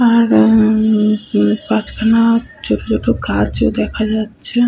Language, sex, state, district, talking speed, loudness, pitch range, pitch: Bengali, female, West Bengal, Paschim Medinipur, 140 wpm, -14 LUFS, 210-230 Hz, 220 Hz